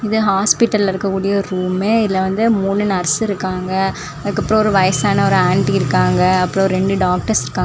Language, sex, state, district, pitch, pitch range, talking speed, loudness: Tamil, female, Tamil Nadu, Kanyakumari, 195 Hz, 185-205 Hz, 150 wpm, -16 LUFS